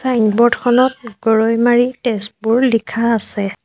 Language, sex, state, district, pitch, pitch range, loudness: Assamese, female, Assam, Sonitpur, 230 Hz, 220-245 Hz, -15 LUFS